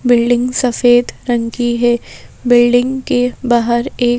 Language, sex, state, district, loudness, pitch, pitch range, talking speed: Hindi, female, Madhya Pradesh, Bhopal, -14 LUFS, 245 Hz, 240-250 Hz, 130 wpm